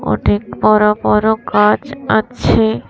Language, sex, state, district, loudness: Bengali, female, Tripura, West Tripura, -14 LUFS